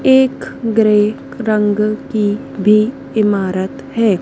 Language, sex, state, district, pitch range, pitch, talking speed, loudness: Hindi, female, Madhya Pradesh, Dhar, 210-230 Hz, 215 Hz, 100 wpm, -15 LUFS